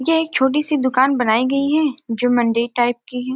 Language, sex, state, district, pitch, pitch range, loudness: Hindi, female, Bihar, Gopalganj, 260 Hz, 240-290 Hz, -18 LUFS